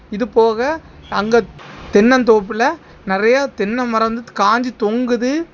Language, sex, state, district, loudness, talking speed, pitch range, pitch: Tamil, male, Tamil Nadu, Kanyakumari, -16 LUFS, 95 wpm, 220-250 Hz, 235 Hz